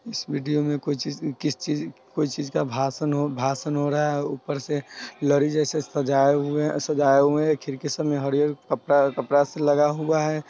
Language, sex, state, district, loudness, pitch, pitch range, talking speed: Hindi, male, Bihar, Sitamarhi, -24 LUFS, 145 Hz, 140-150 Hz, 200 wpm